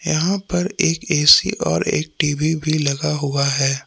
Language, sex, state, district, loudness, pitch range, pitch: Hindi, male, Jharkhand, Palamu, -18 LUFS, 145-170 Hz, 155 Hz